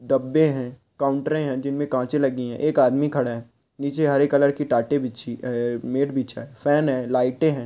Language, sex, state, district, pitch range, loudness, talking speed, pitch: Hindi, male, Rajasthan, Churu, 125-145 Hz, -23 LUFS, 205 wpm, 135 Hz